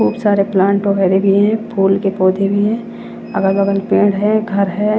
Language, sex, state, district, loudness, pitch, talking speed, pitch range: Hindi, female, Chandigarh, Chandigarh, -15 LUFS, 200 Hz, 205 wpm, 195-205 Hz